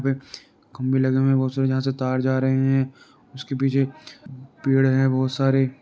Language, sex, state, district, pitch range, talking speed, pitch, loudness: Hindi, male, Uttar Pradesh, Jalaun, 130-135 Hz, 185 wpm, 135 Hz, -22 LUFS